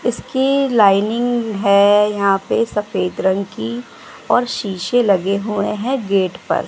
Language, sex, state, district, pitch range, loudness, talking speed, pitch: Hindi, female, Bihar, West Champaran, 195-230 Hz, -17 LUFS, 135 wpm, 205 Hz